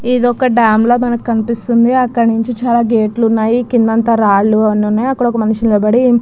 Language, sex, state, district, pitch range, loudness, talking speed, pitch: Telugu, female, Andhra Pradesh, Krishna, 220-245 Hz, -12 LUFS, 195 wpm, 235 Hz